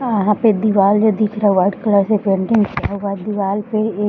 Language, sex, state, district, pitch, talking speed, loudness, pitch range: Hindi, female, Bihar, Bhagalpur, 210 Hz, 265 wpm, -16 LUFS, 200-215 Hz